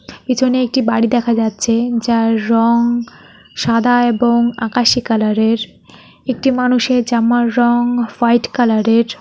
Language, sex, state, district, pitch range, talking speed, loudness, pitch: Bengali, male, West Bengal, North 24 Parganas, 230-245 Hz, 125 wpm, -14 LUFS, 235 Hz